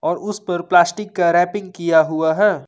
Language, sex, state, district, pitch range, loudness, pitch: Hindi, male, Jharkhand, Ranchi, 170-205 Hz, -17 LUFS, 175 Hz